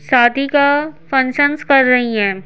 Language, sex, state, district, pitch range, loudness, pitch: Hindi, female, Bihar, Patna, 245-285 Hz, -14 LUFS, 270 Hz